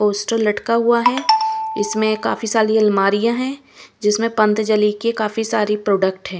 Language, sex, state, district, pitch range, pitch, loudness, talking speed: Hindi, female, Bihar, West Champaran, 210-230 Hz, 220 Hz, -18 LUFS, 150 wpm